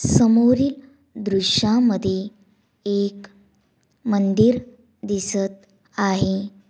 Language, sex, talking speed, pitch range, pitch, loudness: Marathi, female, 55 wpm, 195-235 Hz, 200 Hz, -20 LUFS